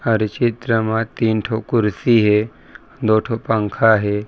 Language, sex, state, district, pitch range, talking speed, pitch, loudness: Chhattisgarhi, male, Chhattisgarh, Raigarh, 105-115 Hz, 170 wpm, 110 Hz, -18 LUFS